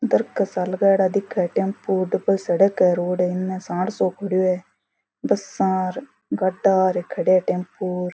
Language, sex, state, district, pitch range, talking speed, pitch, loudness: Rajasthani, female, Rajasthan, Churu, 180-195 Hz, 160 wpm, 185 Hz, -21 LUFS